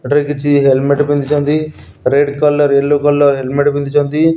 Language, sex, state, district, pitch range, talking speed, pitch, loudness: Odia, male, Odisha, Nuapada, 140-145 Hz, 135 wpm, 145 Hz, -13 LUFS